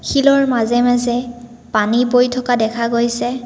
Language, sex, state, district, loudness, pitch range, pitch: Assamese, female, Assam, Kamrup Metropolitan, -16 LUFS, 235-245 Hz, 245 Hz